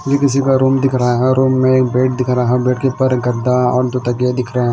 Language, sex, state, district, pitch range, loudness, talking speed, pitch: Hindi, male, Himachal Pradesh, Shimla, 125-130 Hz, -14 LUFS, 315 wpm, 125 Hz